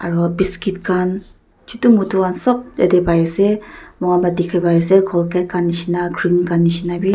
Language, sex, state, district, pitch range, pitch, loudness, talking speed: Nagamese, female, Nagaland, Dimapur, 175-190 Hz, 180 Hz, -16 LUFS, 160 wpm